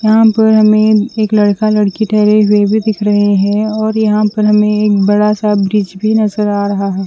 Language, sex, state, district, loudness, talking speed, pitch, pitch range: Hindi, female, Chandigarh, Chandigarh, -11 LUFS, 210 wpm, 210 Hz, 205-215 Hz